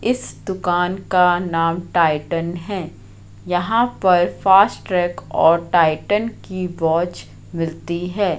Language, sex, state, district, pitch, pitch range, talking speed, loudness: Hindi, female, Madhya Pradesh, Katni, 175 Hz, 165-190 Hz, 105 wpm, -19 LUFS